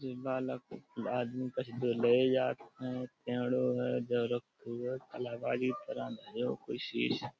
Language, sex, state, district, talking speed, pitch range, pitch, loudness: Hindi, male, Uttar Pradesh, Budaun, 80 wpm, 120-130 Hz, 125 Hz, -35 LUFS